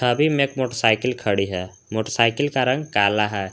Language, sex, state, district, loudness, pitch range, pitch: Hindi, male, Jharkhand, Garhwa, -21 LUFS, 100-130 Hz, 115 Hz